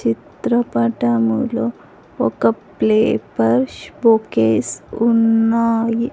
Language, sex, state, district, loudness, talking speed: Telugu, female, Andhra Pradesh, Sri Satya Sai, -17 LUFS, 50 wpm